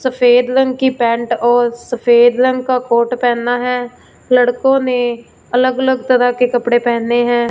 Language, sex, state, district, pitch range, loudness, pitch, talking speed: Hindi, female, Punjab, Fazilka, 240-255 Hz, -14 LUFS, 245 Hz, 160 wpm